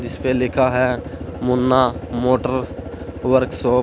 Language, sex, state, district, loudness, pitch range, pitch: Hindi, male, Uttar Pradesh, Saharanpur, -19 LUFS, 95-130 Hz, 125 Hz